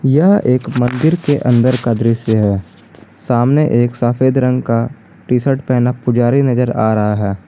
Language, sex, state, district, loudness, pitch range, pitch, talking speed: Hindi, male, Jharkhand, Garhwa, -14 LUFS, 115-130 Hz, 125 Hz, 160 wpm